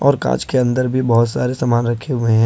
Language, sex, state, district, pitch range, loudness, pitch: Hindi, male, Jharkhand, Ranchi, 120-130 Hz, -17 LUFS, 125 Hz